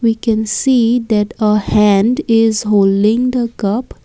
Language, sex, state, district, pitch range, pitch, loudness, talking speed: English, female, Assam, Kamrup Metropolitan, 210-235 Hz, 220 Hz, -14 LUFS, 150 wpm